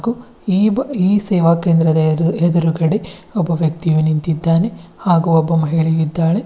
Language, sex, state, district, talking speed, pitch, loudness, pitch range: Kannada, female, Karnataka, Bidar, 110 wpm, 165 Hz, -16 LUFS, 160-190 Hz